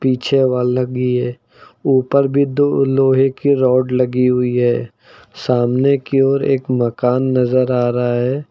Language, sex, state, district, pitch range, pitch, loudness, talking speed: Hindi, male, Uttar Pradesh, Lucknow, 125-135 Hz, 130 Hz, -16 LUFS, 140 wpm